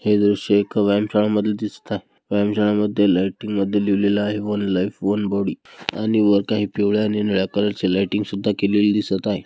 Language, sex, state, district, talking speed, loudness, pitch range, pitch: Marathi, male, Maharashtra, Dhule, 205 wpm, -20 LUFS, 100-105 Hz, 105 Hz